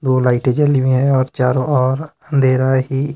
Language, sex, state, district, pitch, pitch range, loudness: Hindi, male, Himachal Pradesh, Shimla, 130 Hz, 130-140 Hz, -15 LUFS